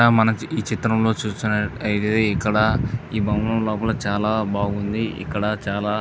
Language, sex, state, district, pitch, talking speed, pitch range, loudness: Telugu, male, Andhra Pradesh, Visakhapatnam, 110 Hz, 150 wpm, 105-110 Hz, -22 LUFS